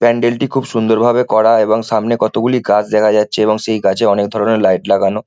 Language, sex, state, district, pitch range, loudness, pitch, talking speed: Bengali, male, West Bengal, Kolkata, 105-115 Hz, -13 LUFS, 110 Hz, 195 wpm